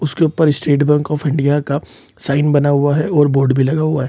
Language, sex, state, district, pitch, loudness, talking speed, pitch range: Hindi, male, Bihar, Purnia, 145 Hz, -15 LUFS, 250 wpm, 140-150 Hz